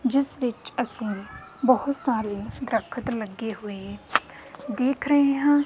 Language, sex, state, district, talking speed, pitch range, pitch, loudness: Punjabi, female, Punjab, Kapurthala, 115 wpm, 215-270 Hz, 245 Hz, -26 LUFS